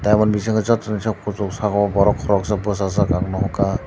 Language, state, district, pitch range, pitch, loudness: Kokborok, Tripura, Dhalai, 100-105 Hz, 105 Hz, -19 LUFS